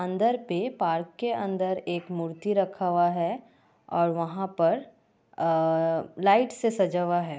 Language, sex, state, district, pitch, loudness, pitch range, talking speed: Hindi, female, Bihar, Kishanganj, 175 Hz, -27 LUFS, 170-200 Hz, 155 wpm